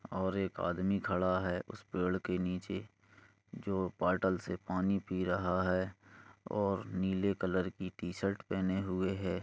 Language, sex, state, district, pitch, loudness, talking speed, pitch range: Hindi, male, Uttar Pradesh, Gorakhpur, 95 Hz, -35 LUFS, 150 wpm, 90-100 Hz